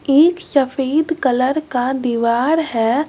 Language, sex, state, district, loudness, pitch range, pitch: Hindi, male, Bihar, West Champaran, -17 LUFS, 250-315 Hz, 270 Hz